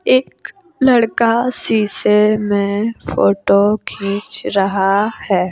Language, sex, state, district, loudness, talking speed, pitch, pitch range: Hindi, female, Uttar Pradesh, Jalaun, -15 LUFS, 85 wpm, 210 Hz, 200-230 Hz